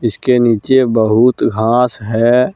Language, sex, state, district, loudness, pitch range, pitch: Hindi, male, Jharkhand, Deoghar, -13 LUFS, 110-125 Hz, 120 Hz